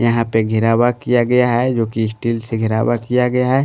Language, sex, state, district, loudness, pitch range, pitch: Hindi, male, Bihar, Patna, -16 LUFS, 115-125 Hz, 120 Hz